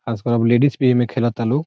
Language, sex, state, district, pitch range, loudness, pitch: Bhojpuri, male, Bihar, Saran, 115-130 Hz, -18 LUFS, 120 Hz